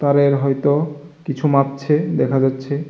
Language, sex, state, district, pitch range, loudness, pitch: Bengali, male, Tripura, West Tripura, 140-150 Hz, -18 LUFS, 140 Hz